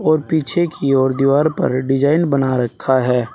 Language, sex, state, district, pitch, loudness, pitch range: Hindi, male, Uttar Pradesh, Saharanpur, 140 Hz, -16 LUFS, 130-155 Hz